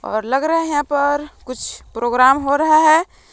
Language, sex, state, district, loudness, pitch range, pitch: Hindi, female, Jharkhand, Palamu, -16 LUFS, 255-310 Hz, 285 Hz